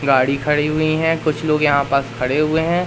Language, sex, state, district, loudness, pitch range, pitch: Hindi, male, Madhya Pradesh, Katni, -17 LUFS, 140-155 Hz, 150 Hz